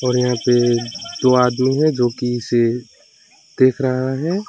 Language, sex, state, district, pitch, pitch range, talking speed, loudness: Hindi, male, West Bengal, Alipurduar, 125 Hz, 120-130 Hz, 160 wpm, -17 LUFS